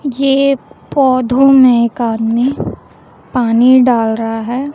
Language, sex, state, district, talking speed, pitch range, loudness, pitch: Hindi, female, Chhattisgarh, Raipur, 115 wpm, 235-270 Hz, -12 LUFS, 250 Hz